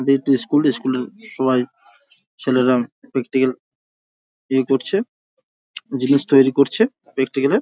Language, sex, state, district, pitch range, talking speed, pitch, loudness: Bengali, male, West Bengal, Jhargram, 130-145 Hz, 150 wpm, 135 Hz, -19 LUFS